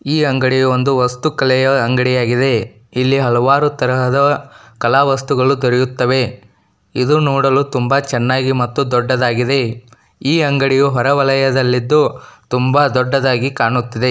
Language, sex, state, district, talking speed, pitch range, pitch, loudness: Kannada, male, Karnataka, Dakshina Kannada, 100 wpm, 125-140 Hz, 130 Hz, -15 LUFS